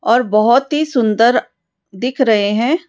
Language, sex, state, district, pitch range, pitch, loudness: Hindi, female, Rajasthan, Jaipur, 215-255 Hz, 235 Hz, -14 LUFS